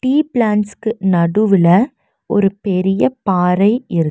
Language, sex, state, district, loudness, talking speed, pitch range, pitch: Tamil, female, Tamil Nadu, Nilgiris, -15 LUFS, 100 wpm, 185-225 Hz, 200 Hz